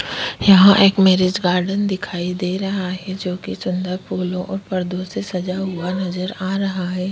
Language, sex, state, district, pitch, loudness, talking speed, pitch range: Hindi, female, Uttar Pradesh, Jyotiba Phule Nagar, 185 Hz, -19 LUFS, 170 wpm, 180-195 Hz